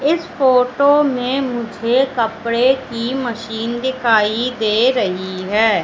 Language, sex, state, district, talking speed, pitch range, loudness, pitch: Hindi, female, Madhya Pradesh, Katni, 115 wpm, 225-260 Hz, -17 LUFS, 240 Hz